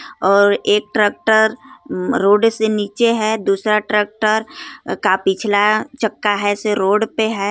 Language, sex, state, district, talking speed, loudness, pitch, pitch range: Hindi, female, Jharkhand, Garhwa, 145 wpm, -16 LUFS, 215 Hz, 205-220 Hz